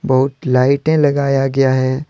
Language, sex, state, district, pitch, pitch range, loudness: Hindi, male, Jharkhand, Deoghar, 135 Hz, 130-140 Hz, -15 LUFS